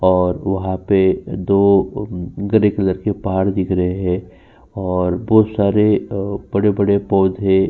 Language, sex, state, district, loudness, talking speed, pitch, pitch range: Hindi, male, Uttar Pradesh, Jyotiba Phule Nagar, -17 LUFS, 140 wpm, 95 Hz, 95-100 Hz